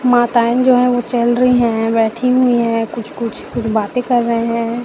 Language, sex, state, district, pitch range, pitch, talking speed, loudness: Hindi, female, Chhattisgarh, Raipur, 230-245 Hz, 235 Hz, 210 wpm, -15 LUFS